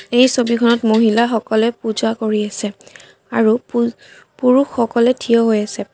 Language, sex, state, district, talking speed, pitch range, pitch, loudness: Assamese, female, Assam, Kamrup Metropolitan, 130 wpm, 220-240 Hz, 230 Hz, -16 LUFS